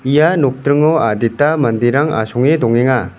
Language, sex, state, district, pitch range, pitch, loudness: Garo, male, Meghalaya, West Garo Hills, 115-150 Hz, 130 Hz, -14 LUFS